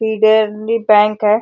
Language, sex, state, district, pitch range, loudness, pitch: Hindi, female, Uttar Pradesh, Deoria, 210-220 Hz, -13 LUFS, 215 Hz